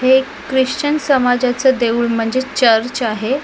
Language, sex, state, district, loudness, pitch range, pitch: Marathi, female, Maharashtra, Mumbai Suburban, -15 LUFS, 235-265 Hz, 255 Hz